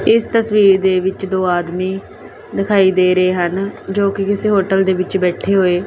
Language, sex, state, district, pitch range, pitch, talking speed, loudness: Punjabi, female, Punjab, Kapurthala, 185-200 Hz, 190 Hz, 185 wpm, -15 LUFS